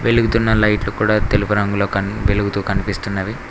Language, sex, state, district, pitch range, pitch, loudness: Telugu, male, Telangana, Mahabubabad, 100-105 Hz, 105 Hz, -18 LUFS